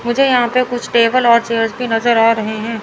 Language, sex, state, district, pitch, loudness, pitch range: Hindi, female, Chandigarh, Chandigarh, 235 Hz, -14 LUFS, 225-245 Hz